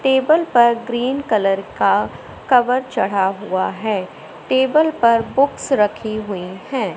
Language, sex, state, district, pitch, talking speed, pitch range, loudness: Hindi, male, Madhya Pradesh, Katni, 235 Hz, 130 wpm, 200-265 Hz, -18 LUFS